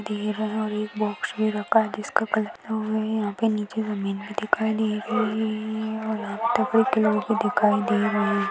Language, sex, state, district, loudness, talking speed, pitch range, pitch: Hindi, female, Maharashtra, Aurangabad, -25 LUFS, 170 wpm, 210-220 Hz, 215 Hz